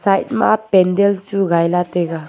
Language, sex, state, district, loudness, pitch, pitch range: Wancho, female, Arunachal Pradesh, Longding, -16 LUFS, 185 Hz, 175-200 Hz